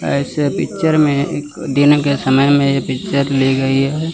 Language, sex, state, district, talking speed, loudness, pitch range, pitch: Hindi, male, Chandigarh, Chandigarh, 175 wpm, -15 LUFS, 135-145 Hz, 140 Hz